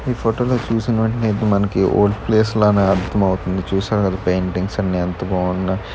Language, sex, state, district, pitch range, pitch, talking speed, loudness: Telugu, male, Andhra Pradesh, Krishna, 95-110 Hz, 100 Hz, 160 wpm, -18 LUFS